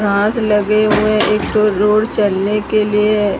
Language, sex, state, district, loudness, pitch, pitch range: Hindi, female, Odisha, Sambalpur, -14 LUFS, 210 Hz, 205-215 Hz